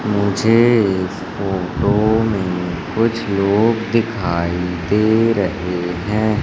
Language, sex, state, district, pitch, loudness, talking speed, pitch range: Hindi, male, Madhya Pradesh, Katni, 100 Hz, -17 LUFS, 95 wpm, 90-110 Hz